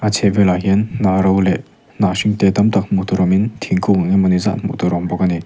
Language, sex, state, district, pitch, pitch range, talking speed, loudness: Mizo, male, Mizoram, Aizawl, 95 Hz, 95-100 Hz, 265 wpm, -16 LUFS